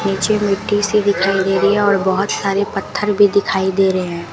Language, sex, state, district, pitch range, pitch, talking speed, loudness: Hindi, female, Rajasthan, Bikaner, 190-205 Hz, 200 Hz, 220 wpm, -16 LUFS